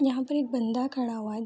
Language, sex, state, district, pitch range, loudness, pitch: Hindi, female, Bihar, Vaishali, 230-270 Hz, -29 LUFS, 255 Hz